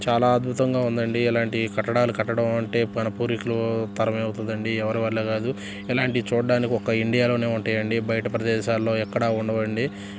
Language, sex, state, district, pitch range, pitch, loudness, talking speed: Telugu, male, Andhra Pradesh, Guntur, 110-120 Hz, 115 Hz, -24 LUFS, 140 wpm